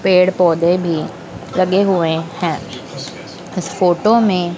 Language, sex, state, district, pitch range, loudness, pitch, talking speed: Hindi, female, Madhya Pradesh, Dhar, 170-190 Hz, -16 LUFS, 180 Hz, 120 wpm